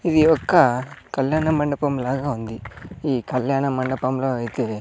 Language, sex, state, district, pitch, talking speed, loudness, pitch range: Telugu, male, Andhra Pradesh, Sri Satya Sai, 130 Hz, 110 wpm, -21 LUFS, 125-145 Hz